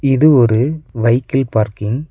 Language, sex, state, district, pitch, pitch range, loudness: Tamil, male, Tamil Nadu, Nilgiris, 130 Hz, 115-140 Hz, -14 LUFS